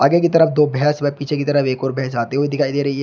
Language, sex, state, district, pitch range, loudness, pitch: Hindi, male, Uttar Pradesh, Shamli, 135-150 Hz, -17 LUFS, 145 Hz